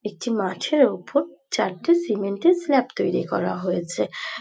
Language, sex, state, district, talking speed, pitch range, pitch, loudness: Bengali, female, West Bengal, Dakshin Dinajpur, 120 wpm, 195-300 Hz, 235 Hz, -23 LUFS